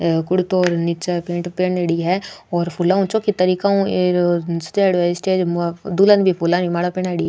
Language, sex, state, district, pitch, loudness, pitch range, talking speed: Rajasthani, female, Rajasthan, Nagaur, 180 Hz, -18 LUFS, 175-185 Hz, 190 wpm